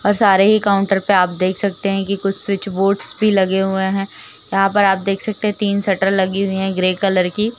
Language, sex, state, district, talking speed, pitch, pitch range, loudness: Hindi, female, Uttar Pradesh, Jalaun, 245 wpm, 195 Hz, 190-200 Hz, -16 LUFS